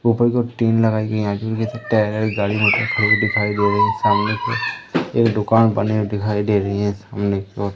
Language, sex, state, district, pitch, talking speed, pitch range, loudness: Hindi, female, Madhya Pradesh, Umaria, 110 Hz, 200 wpm, 105-115 Hz, -18 LUFS